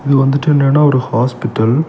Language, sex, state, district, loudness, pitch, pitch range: Tamil, male, Tamil Nadu, Kanyakumari, -13 LUFS, 140 Hz, 125-145 Hz